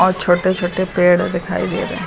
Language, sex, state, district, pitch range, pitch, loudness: Hindi, female, Uttar Pradesh, Lucknow, 175-185 Hz, 185 Hz, -17 LUFS